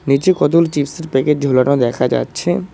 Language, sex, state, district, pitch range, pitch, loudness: Bengali, male, West Bengal, Cooch Behar, 135-170 Hz, 145 Hz, -15 LUFS